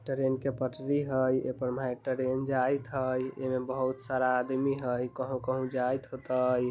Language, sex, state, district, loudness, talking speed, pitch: Bajjika, male, Bihar, Vaishali, -31 LUFS, 195 wpm, 130 Hz